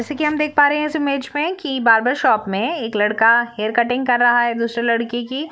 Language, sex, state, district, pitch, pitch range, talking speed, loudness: Hindi, female, Jharkhand, Jamtara, 240 Hz, 230-290 Hz, 260 wpm, -17 LUFS